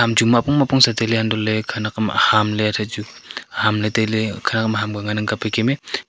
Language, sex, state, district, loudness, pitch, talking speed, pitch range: Wancho, male, Arunachal Pradesh, Longding, -18 LUFS, 110 Hz, 175 wpm, 105-115 Hz